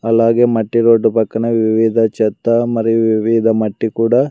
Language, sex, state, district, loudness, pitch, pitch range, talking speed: Telugu, male, Andhra Pradesh, Sri Satya Sai, -14 LUFS, 115 Hz, 110-115 Hz, 140 wpm